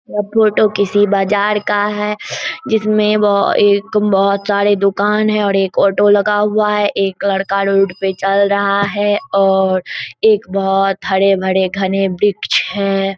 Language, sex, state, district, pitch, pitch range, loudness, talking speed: Hindi, female, Bihar, Saharsa, 200 Hz, 195-210 Hz, -14 LUFS, 150 wpm